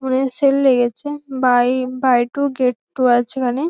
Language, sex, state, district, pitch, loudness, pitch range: Bengali, female, West Bengal, North 24 Parganas, 255 Hz, -17 LUFS, 245-270 Hz